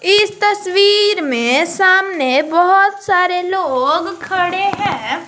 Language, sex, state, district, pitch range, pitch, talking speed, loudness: Hindi, female, Jharkhand, Garhwa, 335-400 Hz, 375 Hz, 100 wpm, -14 LUFS